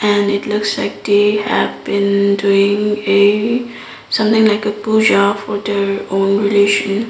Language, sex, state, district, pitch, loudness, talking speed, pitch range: English, female, Sikkim, Gangtok, 205 Hz, -14 LUFS, 135 wpm, 200-210 Hz